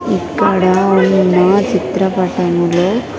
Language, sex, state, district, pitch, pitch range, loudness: Telugu, female, Andhra Pradesh, Sri Satya Sai, 185 Hz, 180-190 Hz, -13 LUFS